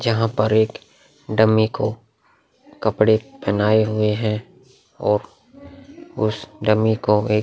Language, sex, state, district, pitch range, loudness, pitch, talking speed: Hindi, male, Bihar, Vaishali, 105-110 Hz, -20 LUFS, 110 Hz, 115 wpm